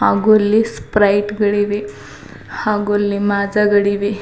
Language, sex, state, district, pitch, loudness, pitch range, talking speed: Kannada, female, Karnataka, Bidar, 205 Hz, -16 LUFS, 200-210 Hz, 85 wpm